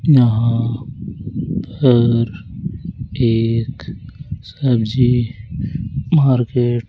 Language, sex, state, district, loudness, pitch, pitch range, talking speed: Hindi, male, Rajasthan, Jaipur, -17 LUFS, 120 Hz, 115-130 Hz, 50 wpm